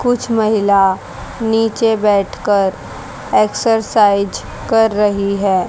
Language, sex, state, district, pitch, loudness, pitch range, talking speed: Hindi, female, Haryana, Jhajjar, 210 Hz, -15 LUFS, 200-225 Hz, 85 wpm